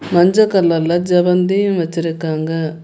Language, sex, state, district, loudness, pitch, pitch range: Tamil, female, Tamil Nadu, Kanyakumari, -15 LUFS, 175 Hz, 165-185 Hz